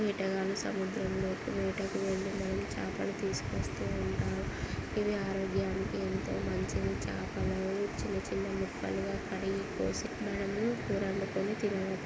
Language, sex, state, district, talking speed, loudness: Telugu, female, Andhra Pradesh, Guntur, 115 wpm, -35 LUFS